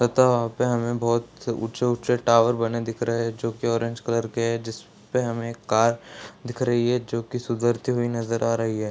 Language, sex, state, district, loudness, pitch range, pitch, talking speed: Hindi, male, Bihar, Darbhanga, -24 LUFS, 115-120 Hz, 115 Hz, 215 wpm